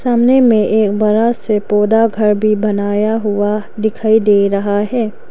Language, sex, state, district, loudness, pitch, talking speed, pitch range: Hindi, female, Arunachal Pradesh, Lower Dibang Valley, -13 LUFS, 215 Hz, 160 wpm, 210-220 Hz